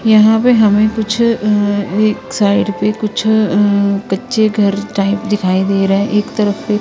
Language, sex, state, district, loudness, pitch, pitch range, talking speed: Hindi, female, Punjab, Kapurthala, -13 LUFS, 210 Hz, 200-215 Hz, 175 wpm